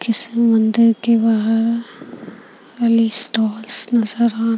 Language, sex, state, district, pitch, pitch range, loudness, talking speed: Hindi, female, Bihar, Katihar, 230 Hz, 225-235 Hz, -17 LUFS, 80 wpm